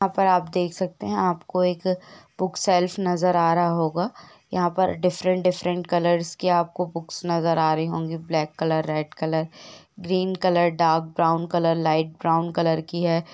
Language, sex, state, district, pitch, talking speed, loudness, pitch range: Hindi, female, Bihar, Gopalganj, 175 Hz, 185 wpm, -23 LUFS, 165-180 Hz